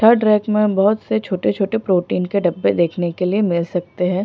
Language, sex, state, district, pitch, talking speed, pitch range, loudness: Hindi, female, Punjab, Pathankot, 195 Hz, 210 wpm, 180-210 Hz, -18 LUFS